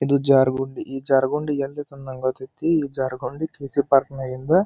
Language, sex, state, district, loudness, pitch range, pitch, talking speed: Kannada, male, Karnataka, Dharwad, -22 LUFS, 130-145 Hz, 135 Hz, 205 wpm